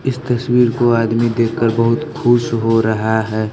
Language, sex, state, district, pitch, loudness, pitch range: Hindi, male, Bihar, West Champaran, 115 Hz, -15 LUFS, 115-120 Hz